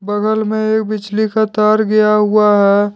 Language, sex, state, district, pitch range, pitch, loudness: Hindi, male, Jharkhand, Deoghar, 210-215 Hz, 215 Hz, -13 LUFS